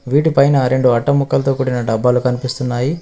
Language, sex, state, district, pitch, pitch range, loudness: Telugu, male, Telangana, Adilabad, 130 Hz, 125-140 Hz, -15 LUFS